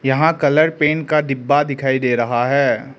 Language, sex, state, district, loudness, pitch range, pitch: Hindi, male, Arunachal Pradesh, Lower Dibang Valley, -17 LUFS, 130-150 Hz, 140 Hz